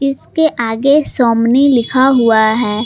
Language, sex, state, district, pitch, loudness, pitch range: Hindi, female, Jharkhand, Palamu, 245 Hz, -12 LUFS, 230-275 Hz